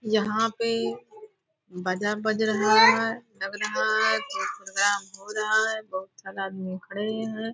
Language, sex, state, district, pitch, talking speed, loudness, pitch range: Hindi, female, Bihar, Purnia, 215 Hz, 150 wpm, -25 LUFS, 195-225 Hz